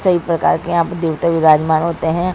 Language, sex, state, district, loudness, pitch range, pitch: Hindi, female, Bihar, Saran, -15 LUFS, 160-170 Hz, 170 Hz